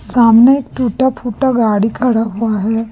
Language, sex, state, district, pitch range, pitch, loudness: Hindi, female, Chhattisgarh, Raipur, 225-255 Hz, 230 Hz, -13 LUFS